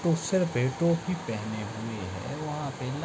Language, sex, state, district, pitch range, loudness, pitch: Hindi, male, Uttar Pradesh, Deoria, 110-165 Hz, -30 LUFS, 140 Hz